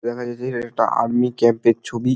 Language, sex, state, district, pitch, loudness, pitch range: Bengali, male, West Bengal, Dakshin Dinajpur, 120 Hz, -20 LUFS, 115-125 Hz